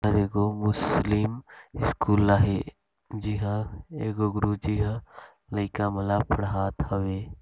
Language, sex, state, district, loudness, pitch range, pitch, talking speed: Hindi, male, Chhattisgarh, Sarguja, -26 LUFS, 100-110 Hz, 105 Hz, 130 wpm